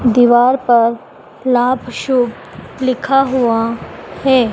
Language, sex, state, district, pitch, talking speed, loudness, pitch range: Hindi, female, Madhya Pradesh, Dhar, 245 Hz, 95 wpm, -14 LUFS, 240-260 Hz